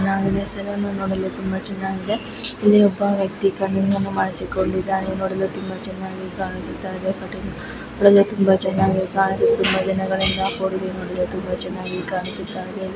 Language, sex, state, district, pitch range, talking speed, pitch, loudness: Kannada, female, Karnataka, Bellary, 190-195 Hz, 130 wpm, 190 Hz, -21 LUFS